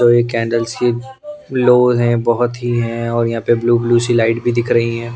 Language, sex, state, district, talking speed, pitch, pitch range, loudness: Hindi, male, Punjab, Pathankot, 245 wpm, 120 Hz, 115-120 Hz, -15 LUFS